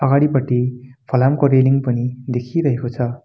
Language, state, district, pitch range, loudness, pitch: Nepali, West Bengal, Darjeeling, 125-135 Hz, -18 LUFS, 130 Hz